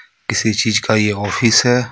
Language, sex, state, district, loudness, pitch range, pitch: Hindi, male, Jharkhand, Ranchi, -15 LUFS, 105-115 Hz, 110 Hz